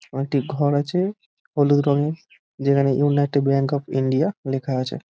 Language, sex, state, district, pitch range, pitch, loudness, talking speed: Bengali, male, West Bengal, Dakshin Dinajpur, 135-145 Hz, 140 Hz, -21 LUFS, 165 wpm